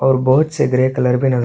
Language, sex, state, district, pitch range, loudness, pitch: Hindi, male, Chhattisgarh, Korba, 130-135 Hz, -15 LUFS, 130 Hz